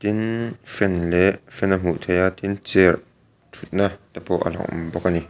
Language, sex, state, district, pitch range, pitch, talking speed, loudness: Mizo, male, Mizoram, Aizawl, 90-100 Hz, 95 Hz, 205 wpm, -22 LUFS